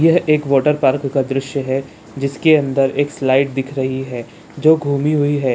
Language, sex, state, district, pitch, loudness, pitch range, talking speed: Hindi, male, Bihar, Jamui, 140 Hz, -17 LUFS, 135-145 Hz, 195 wpm